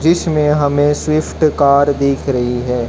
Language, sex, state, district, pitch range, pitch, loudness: Hindi, male, Haryana, Jhajjar, 140-155 Hz, 145 Hz, -14 LUFS